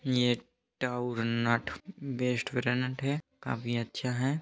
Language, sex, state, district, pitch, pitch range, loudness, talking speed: Hindi, male, Bihar, East Champaran, 125 Hz, 120-135 Hz, -32 LUFS, 95 wpm